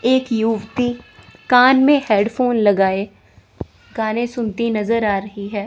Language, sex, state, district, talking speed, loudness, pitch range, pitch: Hindi, female, Chandigarh, Chandigarh, 125 wpm, -17 LUFS, 210-245 Hz, 225 Hz